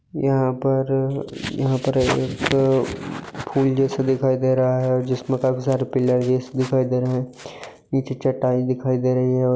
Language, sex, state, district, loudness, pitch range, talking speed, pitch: Hindi, male, Bihar, Jahanabad, -21 LUFS, 130-135 Hz, 175 wpm, 130 Hz